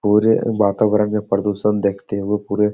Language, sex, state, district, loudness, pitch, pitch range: Hindi, male, Bihar, Jamui, -18 LUFS, 105 Hz, 100-105 Hz